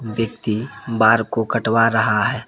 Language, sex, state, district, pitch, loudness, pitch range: Hindi, male, Jharkhand, Palamu, 115 Hz, -18 LUFS, 110-115 Hz